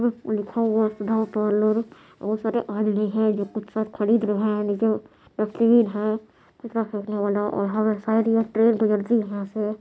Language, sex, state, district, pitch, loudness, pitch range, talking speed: Hindi, female, Bihar, Madhepura, 215 Hz, -23 LUFS, 210-225 Hz, 105 wpm